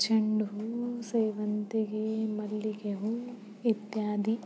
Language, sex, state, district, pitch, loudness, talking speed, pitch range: Kannada, female, Karnataka, Belgaum, 215 Hz, -32 LUFS, 80 wpm, 210-225 Hz